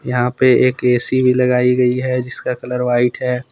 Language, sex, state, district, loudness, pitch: Hindi, male, Jharkhand, Deoghar, -16 LUFS, 125 Hz